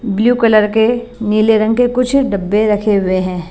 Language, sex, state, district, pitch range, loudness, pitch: Hindi, female, Bihar, Katihar, 205-240 Hz, -13 LUFS, 215 Hz